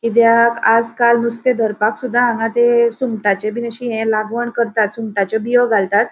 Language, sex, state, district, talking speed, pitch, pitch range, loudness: Konkani, female, Goa, North and South Goa, 145 wpm, 230 Hz, 220-240 Hz, -16 LUFS